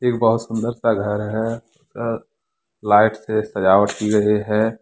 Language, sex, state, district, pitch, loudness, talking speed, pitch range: Hindi, male, Jharkhand, Deoghar, 110 Hz, -19 LUFS, 160 wpm, 105-115 Hz